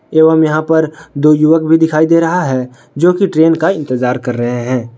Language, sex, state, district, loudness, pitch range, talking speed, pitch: Hindi, male, Jharkhand, Palamu, -12 LUFS, 125-160 Hz, 205 wpm, 155 Hz